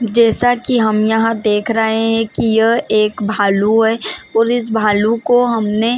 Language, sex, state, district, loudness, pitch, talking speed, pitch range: Hindi, female, Maharashtra, Chandrapur, -14 LUFS, 225 Hz, 170 wpm, 215-230 Hz